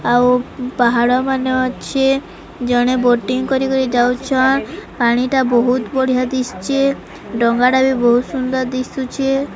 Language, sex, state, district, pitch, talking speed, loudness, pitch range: Odia, female, Odisha, Sambalpur, 255 Hz, 120 wpm, -16 LUFS, 245-265 Hz